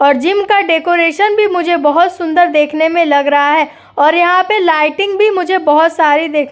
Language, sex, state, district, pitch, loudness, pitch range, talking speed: Hindi, female, Uttar Pradesh, Etah, 335 Hz, -11 LUFS, 300-370 Hz, 210 wpm